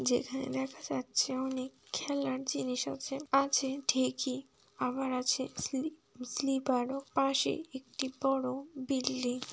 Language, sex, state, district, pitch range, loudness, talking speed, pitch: Bengali, female, West Bengal, Kolkata, 255-275 Hz, -34 LUFS, 105 wpm, 265 Hz